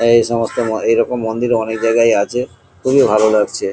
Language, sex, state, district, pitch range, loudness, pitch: Bengali, male, West Bengal, Kolkata, 110-120 Hz, -15 LUFS, 115 Hz